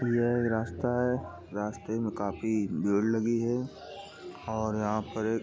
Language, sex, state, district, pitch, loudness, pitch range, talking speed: Hindi, male, Uttar Pradesh, Gorakhpur, 110 Hz, -31 LUFS, 105-120 Hz, 165 wpm